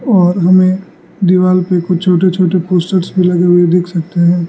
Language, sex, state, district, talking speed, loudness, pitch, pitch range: Hindi, male, Arunachal Pradesh, Lower Dibang Valley, 185 wpm, -11 LUFS, 180 Hz, 175-185 Hz